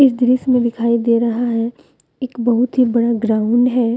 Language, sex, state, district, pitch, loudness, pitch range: Hindi, female, Jharkhand, Deoghar, 235 Hz, -16 LUFS, 235-250 Hz